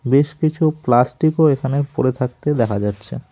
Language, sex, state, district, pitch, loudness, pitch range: Bengali, male, West Bengal, Alipurduar, 140 Hz, -18 LUFS, 125-155 Hz